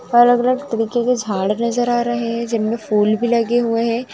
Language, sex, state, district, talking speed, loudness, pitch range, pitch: Hindi, female, Bihar, Purnia, 230 wpm, -18 LUFS, 225-240 Hz, 235 Hz